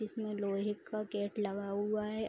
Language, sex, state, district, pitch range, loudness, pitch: Hindi, female, Bihar, Araria, 205-215 Hz, -37 LUFS, 210 Hz